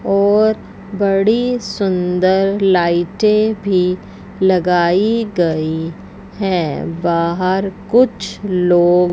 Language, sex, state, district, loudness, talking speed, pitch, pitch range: Hindi, female, Chandigarh, Chandigarh, -15 LUFS, 70 wpm, 190 Hz, 175-205 Hz